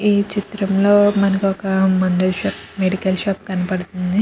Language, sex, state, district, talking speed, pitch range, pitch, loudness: Telugu, female, Andhra Pradesh, Krishna, 130 wpm, 185-200 Hz, 195 Hz, -18 LUFS